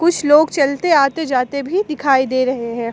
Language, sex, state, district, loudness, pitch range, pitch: Hindi, female, Jharkhand, Palamu, -16 LUFS, 260-315 Hz, 280 Hz